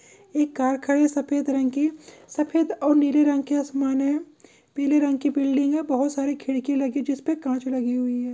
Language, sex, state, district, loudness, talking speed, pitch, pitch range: Hindi, male, Chhattisgarh, Korba, -23 LUFS, 195 wpm, 280 Hz, 270-295 Hz